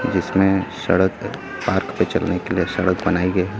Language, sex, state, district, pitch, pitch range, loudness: Hindi, male, Chhattisgarh, Raipur, 95 Hz, 90-95 Hz, -20 LUFS